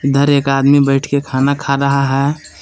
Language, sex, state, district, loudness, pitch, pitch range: Hindi, male, Jharkhand, Palamu, -14 LUFS, 140 Hz, 135-140 Hz